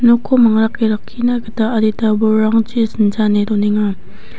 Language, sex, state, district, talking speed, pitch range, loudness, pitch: Garo, female, Meghalaya, West Garo Hills, 110 wpm, 215-230 Hz, -15 LUFS, 220 Hz